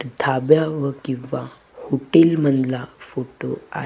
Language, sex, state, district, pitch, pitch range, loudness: Marathi, male, Maharashtra, Gondia, 135 Hz, 130-155 Hz, -20 LUFS